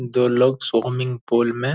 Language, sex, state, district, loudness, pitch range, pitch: Angika, male, Bihar, Purnia, -20 LUFS, 120-125 Hz, 125 Hz